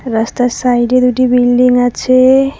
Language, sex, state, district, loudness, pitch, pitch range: Bengali, female, West Bengal, Cooch Behar, -11 LUFS, 250 Hz, 245-255 Hz